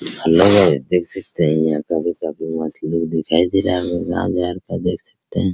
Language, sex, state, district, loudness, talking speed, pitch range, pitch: Hindi, male, Bihar, Araria, -18 LUFS, 205 wpm, 80-90 Hz, 85 Hz